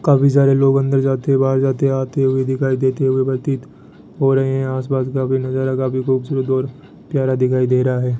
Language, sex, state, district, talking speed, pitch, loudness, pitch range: Hindi, female, Rajasthan, Bikaner, 205 wpm, 130 Hz, -17 LUFS, 130-135 Hz